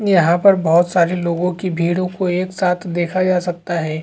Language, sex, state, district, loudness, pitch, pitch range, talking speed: Hindi, male, Chhattisgarh, Rajnandgaon, -17 LUFS, 180 Hz, 170-185 Hz, 210 wpm